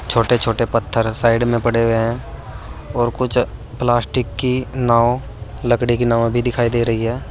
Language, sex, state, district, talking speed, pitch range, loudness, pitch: Hindi, male, Uttar Pradesh, Saharanpur, 170 wpm, 115-120 Hz, -18 LUFS, 120 Hz